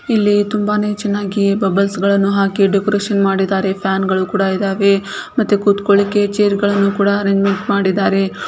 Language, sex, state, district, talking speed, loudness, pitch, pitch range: Kannada, female, Karnataka, Shimoga, 120 wpm, -15 LUFS, 200 Hz, 195-205 Hz